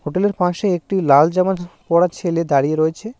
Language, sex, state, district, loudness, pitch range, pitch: Bengali, male, West Bengal, Cooch Behar, -17 LUFS, 160-190 Hz, 175 Hz